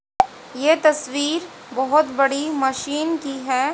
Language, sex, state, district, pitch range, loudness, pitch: Hindi, female, Haryana, Charkhi Dadri, 265-310 Hz, -21 LUFS, 285 Hz